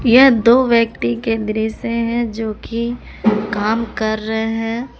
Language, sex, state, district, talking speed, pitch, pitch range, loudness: Hindi, female, Jharkhand, Palamu, 130 wpm, 225 Hz, 220-235 Hz, -17 LUFS